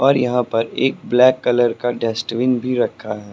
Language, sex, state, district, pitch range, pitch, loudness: Hindi, male, Uttar Pradesh, Lucknow, 115-125 Hz, 120 Hz, -18 LUFS